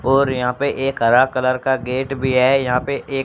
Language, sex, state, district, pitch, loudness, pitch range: Hindi, male, Haryana, Rohtak, 130 Hz, -18 LUFS, 130-135 Hz